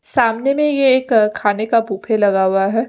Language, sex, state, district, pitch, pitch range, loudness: Hindi, female, Punjab, Fazilka, 225 Hz, 205-255 Hz, -16 LUFS